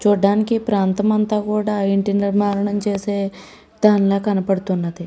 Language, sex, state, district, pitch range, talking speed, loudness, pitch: Telugu, female, Andhra Pradesh, Srikakulam, 195-210 Hz, 140 wpm, -19 LUFS, 205 Hz